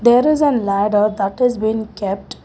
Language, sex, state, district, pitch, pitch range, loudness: English, female, Karnataka, Bangalore, 215 Hz, 200-245 Hz, -17 LUFS